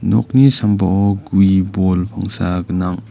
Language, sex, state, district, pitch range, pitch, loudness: Garo, male, Meghalaya, West Garo Hills, 90-105 Hz, 95 Hz, -15 LUFS